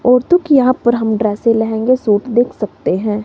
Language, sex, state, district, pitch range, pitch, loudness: Hindi, female, Himachal Pradesh, Shimla, 220-255 Hz, 235 Hz, -14 LUFS